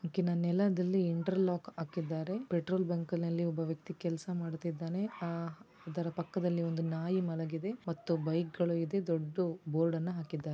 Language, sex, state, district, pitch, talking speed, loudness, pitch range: Kannada, female, Karnataka, Dakshina Kannada, 170 Hz, 150 wpm, -35 LUFS, 165-180 Hz